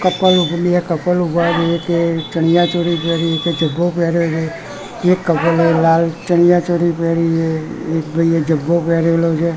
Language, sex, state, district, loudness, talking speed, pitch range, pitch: Gujarati, male, Gujarat, Gandhinagar, -15 LUFS, 115 wpm, 165-175 Hz, 170 Hz